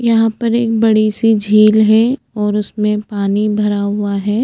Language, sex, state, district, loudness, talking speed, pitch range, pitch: Hindi, female, Chhattisgarh, Bastar, -14 LUFS, 175 wpm, 210-225 Hz, 215 Hz